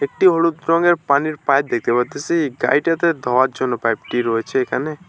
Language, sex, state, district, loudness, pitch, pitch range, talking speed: Bengali, male, West Bengal, Alipurduar, -18 LUFS, 140 Hz, 125-165 Hz, 165 wpm